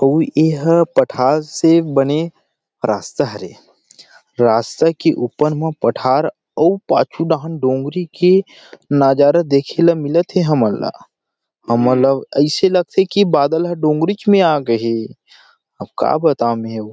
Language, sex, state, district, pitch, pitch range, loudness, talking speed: Chhattisgarhi, male, Chhattisgarh, Rajnandgaon, 155 Hz, 135-170 Hz, -15 LUFS, 140 wpm